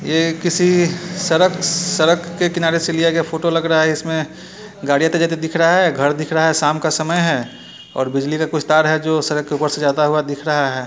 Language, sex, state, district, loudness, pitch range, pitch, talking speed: Hindi, male, Bihar, Muzaffarpur, -17 LUFS, 150-170 Hz, 160 Hz, 245 wpm